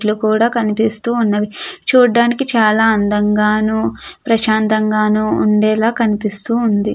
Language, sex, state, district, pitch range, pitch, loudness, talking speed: Telugu, female, Andhra Pradesh, Krishna, 210-230 Hz, 215 Hz, -14 LUFS, 85 wpm